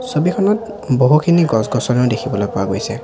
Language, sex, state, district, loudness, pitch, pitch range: Assamese, male, Assam, Sonitpur, -16 LUFS, 130 Hz, 115-170 Hz